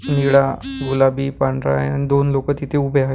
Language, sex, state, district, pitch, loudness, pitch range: Marathi, male, Maharashtra, Gondia, 135 Hz, -18 LUFS, 135-140 Hz